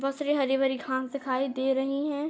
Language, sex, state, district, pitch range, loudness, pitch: Hindi, female, Jharkhand, Sahebganj, 265-280 Hz, -28 LUFS, 270 Hz